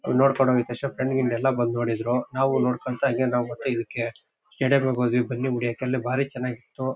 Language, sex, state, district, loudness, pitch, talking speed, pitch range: Kannada, male, Karnataka, Shimoga, -25 LUFS, 125 Hz, 205 wpm, 120-130 Hz